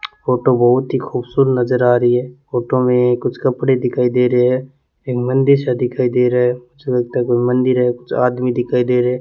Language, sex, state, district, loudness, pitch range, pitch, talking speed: Hindi, male, Rajasthan, Bikaner, -16 LUFS, 125-130 Hz, 125 Hz, 230 wpm